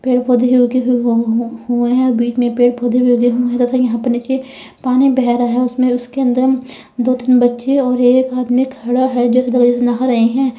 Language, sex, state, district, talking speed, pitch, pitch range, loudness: Hindi, female, Uttar Pradesh, Lalitpur, 210 wpm, 245 Hz, 245-255 Hz, -14 LUFS